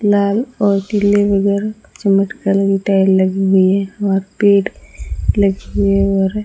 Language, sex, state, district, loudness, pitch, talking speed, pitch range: Hindi, female, Rajasthan, Barmer, -15 LUFS, 195 Hz, 130 wpm, 195-205 Hz